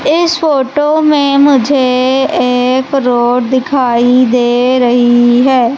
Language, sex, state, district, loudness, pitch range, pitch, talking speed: Hindi, female, Madhya Pradesh, Umaria, -10 LUFS, 245-280 Hz, 255 Hz, 105 wpm